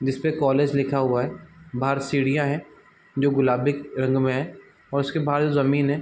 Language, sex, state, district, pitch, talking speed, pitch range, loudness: Hindi, male, Chhattisgarh, Raigarh, 140 Hz, 190 wpm, 135-145 Hz, -23 LUFS